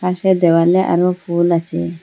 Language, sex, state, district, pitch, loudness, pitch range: Bengali, female, Assam, Hailakandi, 175 Hz, -15 LUFS, 165-180 Hz